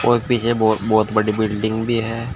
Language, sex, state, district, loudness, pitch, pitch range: Hindi, male, Uttar Pradesh, Shamli, -19 LUFS, 110 Hz, 110-120 Hz